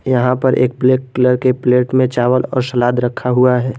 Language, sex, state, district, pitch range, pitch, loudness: Hindi, male, Jharkhand, Garhwa, 125-130 Hz, 125 Hz, -14 LUFS